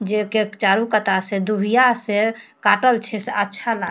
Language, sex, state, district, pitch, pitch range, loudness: Maithili, female, Bihar, Darbhanga, 215 Hz, 205-225 Hz, -19 LUFS